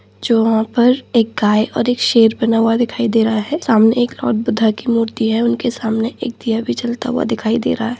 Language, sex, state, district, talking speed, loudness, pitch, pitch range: Hindi, female, Uttar Pradesh, Budaun, 240 wpm, -16 LUFS, 230 Hz, 225-240 Hz